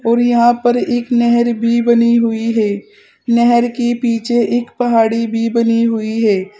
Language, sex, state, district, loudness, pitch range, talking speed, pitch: Hindi, female, Uttar Pradesh, Saharanpur, -14 LUFS, 230-240 Hz, 165 wpm, 235 Hz